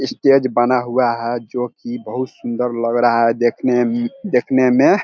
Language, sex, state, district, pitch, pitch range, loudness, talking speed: Hindi, male, Bihar, Vaishali, 125 Hz, 120-130 Hz, -17 LUFS, 180 wpm